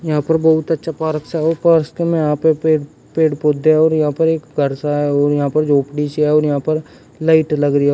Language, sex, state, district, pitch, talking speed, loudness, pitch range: Hindi, male, Uttar Pradesh, Shamli, 155 Hz, 270 wpm, -16 LUFS, 145-160 Hz